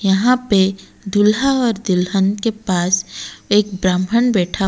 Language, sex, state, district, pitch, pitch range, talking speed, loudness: Hindi, female, Odisha, Malkangiri, 200 Hz, 190-225 Hz, 130 wpm, -16 LUFS